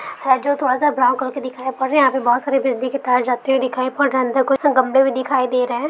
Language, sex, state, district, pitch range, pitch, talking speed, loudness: Hindi, female, Jharkhand, Sahebganj, 255-270 Hz, 260 Hz, 295 wpm, -18 LUFS